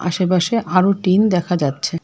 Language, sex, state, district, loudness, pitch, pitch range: Bengali, female, West Bengal, Alipurduar, -17 LUFS, 180 Hz, 175-190 Hz